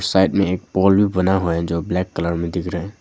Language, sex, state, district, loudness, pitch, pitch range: Hindi, male, Arunachal Pradesh, Longding, -19 LUFS, 90 Hz, 85-95 Hz